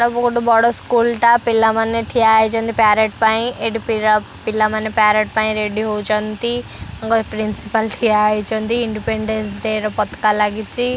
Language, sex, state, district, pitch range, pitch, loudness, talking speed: Odia, female, Odisha, Khordha, 215-230 Hz, 220 Hz, -17 LUFS, 140 wpm